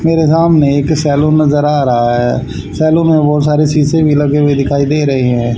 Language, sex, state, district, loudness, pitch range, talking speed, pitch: Hindi, male, Haryana, Charkhi Dadri, -11 LUFS, 140-155 Hz, 215 wpm, 150 Hz